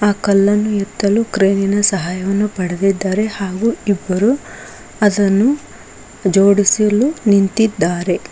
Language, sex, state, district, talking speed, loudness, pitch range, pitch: Kannada, female, Karnataka, Koppal, 80 wpm, -15 LUFS, 195-215 Hz, 200 Hz